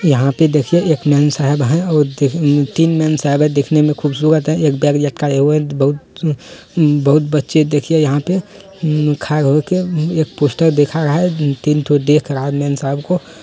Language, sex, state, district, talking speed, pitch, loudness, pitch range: Hindi, male, Bihar, Jamui, 185 wpm, 150 Hz, -15 LUFS, 145-160 Hz